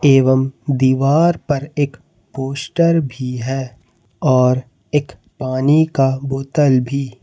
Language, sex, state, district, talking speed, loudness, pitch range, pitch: Hindi, male, Jharkhand, Ranchi, 115 wpm, -17 LUFS, 130-145 Hz, 135 Hz